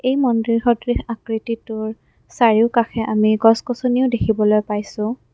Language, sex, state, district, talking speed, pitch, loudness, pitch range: Assamese, female, Assam, Kamrup Metropolitan, 100 wpm, 225 Hz, -18 LUFS, 220-240 Hz